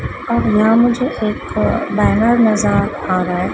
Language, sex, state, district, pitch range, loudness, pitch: Hindi, female, Madhya Pradesh, Dhar, 185-230 Hz, -15 LUFS, 215 Hz